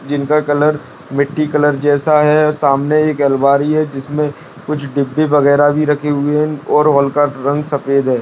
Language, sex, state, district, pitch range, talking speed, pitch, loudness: Hindi, male, Bihar, Darbhanga, 140-150 Hz, 175 wpm, 145 Hz, -14 LUFS